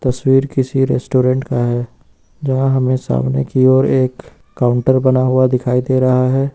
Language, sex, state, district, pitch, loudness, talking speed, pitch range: Hindi, male, Uttar Pradesh, Lucknow, 130 Hz, -15 LUFS, 165 wpm, 125-130 Hz